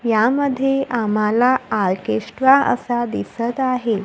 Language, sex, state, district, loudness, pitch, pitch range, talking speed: Marathi, female, Maharashtra, Gondia, -18 LUFS, 240 Hz, 215-260 Hz, 90 wpm